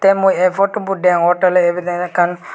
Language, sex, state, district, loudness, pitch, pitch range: Chakma, male, Tripura, West Tripura, -15 LUFS, 180 Hz, 175-195 Hz